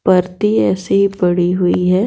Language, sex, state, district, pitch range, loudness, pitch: Hindi, female, Bihar, Patna, 180-195 Hz, -15 LUFS, 185 Hz